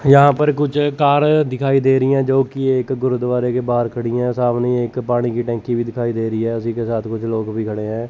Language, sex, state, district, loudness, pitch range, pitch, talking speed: Hindi, male, Chandigarh, Chandigarh, -18 LUFS, 115-135 Hz, 125 Hz, 245 wpm